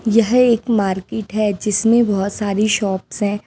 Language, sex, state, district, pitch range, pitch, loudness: Hindi, female, Himachal Pradesh, Shimla, 200-225 Hz, 210 Hz, -17 LUFS